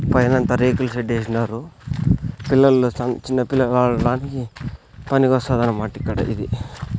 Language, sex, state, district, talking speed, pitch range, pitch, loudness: Telugu, male, Andhra Pradesh, Sri Satya Sai, 85 wpm, 115-135 Hz, 125 Hz, -20 LUFS